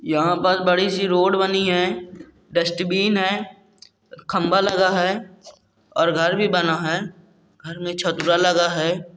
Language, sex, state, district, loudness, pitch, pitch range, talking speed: Hindi, male, Jharkhand, Jamtara, -20 LUFS, 180 Hz, 175-190 Hz, 145 wpm